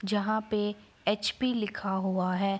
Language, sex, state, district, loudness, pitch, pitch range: Hindi, female, Bihar, Araria, -30 LUFS, 205 Hz, 195-215 Hz